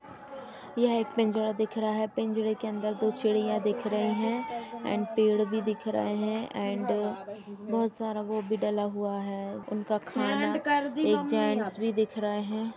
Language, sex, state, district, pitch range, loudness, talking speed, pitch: Hindi, female, Uttar Pradesh, Jalaun, 210-225 Hz, -29 LUFS, 175 wpm, 215 Hz